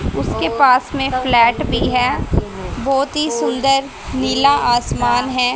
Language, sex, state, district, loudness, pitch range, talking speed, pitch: Hindi, female, Haryana, Jhajjar, -16 LUFS, 170-270 Hz, 130 wpm, 255 Hz